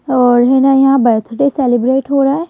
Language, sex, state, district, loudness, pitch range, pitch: Hindi, female, Madhya Pradesh, Bhopal, -12 LUFS, 245-275 Hz, 265 Hz